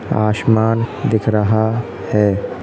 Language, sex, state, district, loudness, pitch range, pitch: Hindi, male, Uttar Pradesh, Hamirpur, -17 LUFS, 105-115 Hz, 110 Hz